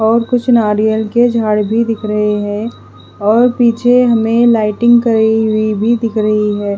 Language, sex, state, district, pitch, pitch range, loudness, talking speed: Hindi, female, Bihar, West Champaran, 220 Hz, 210-235 Hz, -12 LUFS, 170 wpm